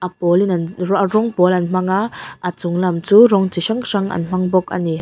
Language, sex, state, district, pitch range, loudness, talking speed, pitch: Mizo, female, Mizoram, Aizawl, 180-200 Hz, -17 LUFS, 240 wpm, 185 Hz